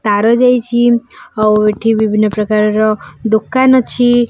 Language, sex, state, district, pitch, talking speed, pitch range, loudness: Odia, female, Odisha, Khordha, 220 Hz, 110 wpm, 215-240 Hz, -12 LUFS